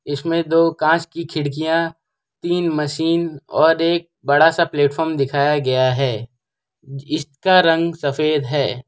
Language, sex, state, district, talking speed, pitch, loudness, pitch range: Hindi, male, Gujarat, Valsad, 130 wpm, 155 Hz, -18 LUFS, 140-165 Hz